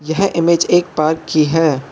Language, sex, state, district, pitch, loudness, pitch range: Hindi, male, Arunachal Pradesh, Lower Dibang Valley, 160 Hz, -15 LUFS, 155-170 Hz